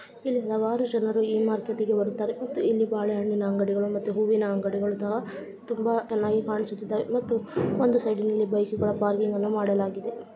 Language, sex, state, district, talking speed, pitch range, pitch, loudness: Kannada, female, Karnataka, Belgaum, 145 wpm, 205-225 Hz, 215 Hz, -26 LUFS